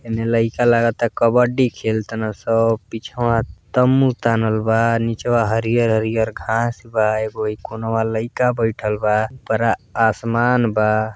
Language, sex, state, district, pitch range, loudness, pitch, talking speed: Bhojpuri, male, Uttar Pradesh, Deoria, 110-120 Hz, -19 LUFS, 115 Hz, 135 wpm